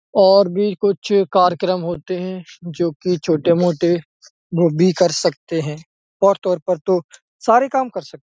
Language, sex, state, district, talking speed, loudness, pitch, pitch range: Hindi, male, Uttar Pradesh, Etah, 160 wpm, -18 LUFS, 180 Hz, 170-195 Hz